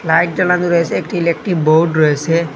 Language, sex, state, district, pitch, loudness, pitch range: Bengali, male, Assam, Hailakandi, 170 Hz, -14 LUFS, 160-175 Hz